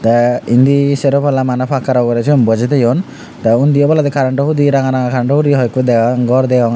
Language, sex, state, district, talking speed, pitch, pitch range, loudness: Chakma, male, Tripura, Unakoti, 230 wpm, 130 Hz, 120-140 Hz, -12 LUFS